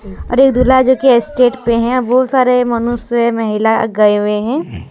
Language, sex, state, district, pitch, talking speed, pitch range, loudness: Hindi, female, Jharkhand, Deoghar, 240 Hz, 170 wpm, 225-255 Hz, -13 LUFS